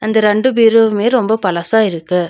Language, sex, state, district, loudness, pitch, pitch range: Tamil, female, Tamil Nadu, Nilgiris, -13 LUFS, 220 Hz, 185-225 Hz